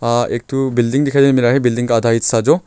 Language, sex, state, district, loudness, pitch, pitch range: Hindi, male, Arunachal Pradesh, Longding, -15 LUFS, 120 Hz, 120-135 Hz